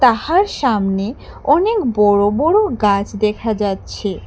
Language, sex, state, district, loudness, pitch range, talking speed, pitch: Bengali, female, Tripura, West Tripura, -16 LUFS, 205-295 Hz, 110 wpm, 220 Hz